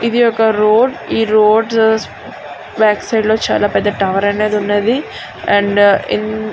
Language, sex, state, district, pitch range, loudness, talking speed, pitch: Telugu, female, Andhra Pradesh, Srikakulam, 205-225 Hz, -13 LUFS, 120 wpm, 215 Hz